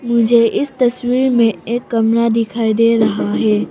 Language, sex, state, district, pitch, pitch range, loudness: Hindi, female, Arunachal Pradesh, Papum Pare, 230 Hz, 225-240 Hz, -15 LUFS